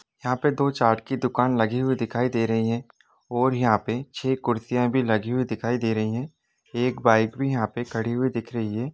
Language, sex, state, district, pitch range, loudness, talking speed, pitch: Hindi, male, Jharkhand, Jamtara, 115-130 Hz, -24 LUFS, 230 wpm, 120 Hz